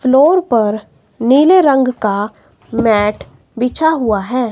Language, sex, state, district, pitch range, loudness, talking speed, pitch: Hindi, female, Himachal Pradesh, Shimla, 215-275 Hz, -13 LUFS, 120 wpm, 250 Hz